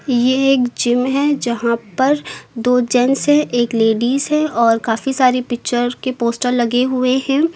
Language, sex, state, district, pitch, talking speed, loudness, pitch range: Hindi, female, Uttar Pradesh, Lucknow, 250 Hz, 165 wpm, -16 LUFS, 240-270 Hz